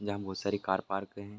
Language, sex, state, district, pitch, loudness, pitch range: Hindi, male, Uttar Pradesh, Gorakhpur, 100 Hz, -34 LUFS, 95-100 Hz